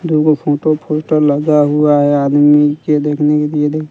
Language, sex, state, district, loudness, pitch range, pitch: Hindi, male, Bihar, West Champaran, -12 LUFS, 145-155 Hz, 150 Hz